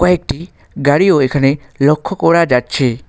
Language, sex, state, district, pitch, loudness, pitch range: Bengali, male, West Bengal, Alipurduar, 145 Hz, -14 LUFS, 135-170 Hz